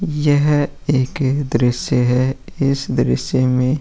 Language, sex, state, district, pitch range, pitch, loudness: Hindi, male, Uttar Pradesh, Muzaffarnagar, 125-145 Hz, 135 Hz, -17 LUFS